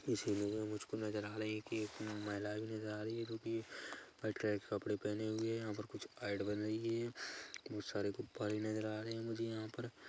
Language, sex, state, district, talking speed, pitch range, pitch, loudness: Hindi, male, Chhattisgarh, Kabirdham, 250 wpm, 105-110 Hz, 110 Hz, -42 LUFS